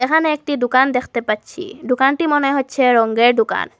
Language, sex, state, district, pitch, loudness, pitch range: Bengali, female, Assam, Hailakandi, 260 Hz, -16 LUFS, 240-290 Hz